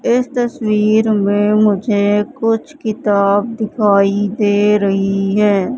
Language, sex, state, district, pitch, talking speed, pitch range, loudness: Hindi, female, Madhya Pradesh, Katni, 210 Hz, 105 wpm, 205-220 Hz, -15 LUFS